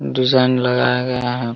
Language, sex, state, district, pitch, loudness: Hindi, male, Uttar Pradesh, Ghazipur, 125 Hz, -17 LUFS